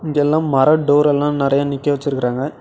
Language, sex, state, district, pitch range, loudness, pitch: Tamil, male, Tamil Nadu, Namakkal, 140-150 Hz, -16 LUFS, 145 Hz